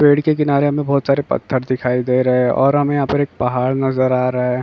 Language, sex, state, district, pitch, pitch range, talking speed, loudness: Hindi, male, Bihar, Kishanganj, 135 Hz, 125-145 Hz, 270 wpm, -17 LUFS